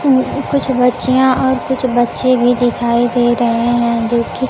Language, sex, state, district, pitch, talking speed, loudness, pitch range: Hindi, female, Bihar, Kaimur, 245 Hz, 145 wpm, -14 LUFS, 240-260 Hz